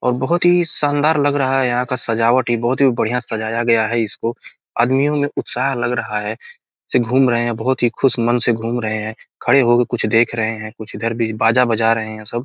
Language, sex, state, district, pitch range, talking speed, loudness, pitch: Hindi, male, Bihar, Gopalganj, 115-130 Hz, 235 wpm, -18 LUFS, 120 Hz